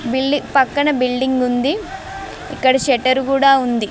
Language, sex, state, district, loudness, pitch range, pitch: Telugu, female, Telangana, Mahabubabad, -16 LUFS, 255-275 Hz, 265 Hz